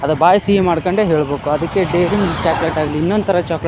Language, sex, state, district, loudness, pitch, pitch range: Kannada, male, Karnataka, Dharwad, -15 LUFS, 170 Hz, 160-190 Hz